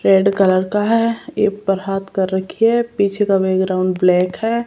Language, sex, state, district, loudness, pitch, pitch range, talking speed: Hindi, female, Rajasthan, Jaipur, -17 LUFS, 195 Hz, 190-210 Hz, 195 wpm